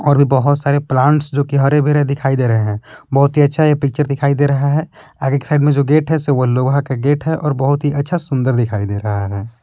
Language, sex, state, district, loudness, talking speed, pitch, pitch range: Hindi, male, Jharkhand, Palamu, -15 LUFS, 275 wpm, 140 Hz, 130-145 Hz